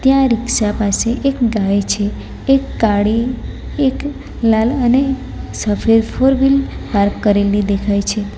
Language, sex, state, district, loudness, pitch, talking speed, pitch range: Gujarati, female, Gujarat, Valsad, -16 LUFS, 225 Hz, 120 wpm, 205-265 Hz